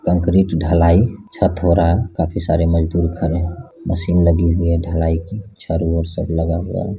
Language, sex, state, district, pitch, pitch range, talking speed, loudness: Hindi, male, Bihar, Saran, 85 Hz, 85-95 Hz, 195 wpm, -17 LUFS